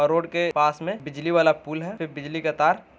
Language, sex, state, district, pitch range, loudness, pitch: Hindi, male, Bihar, Saran, 150-170 Hz, -24 LUFS, 155 Hz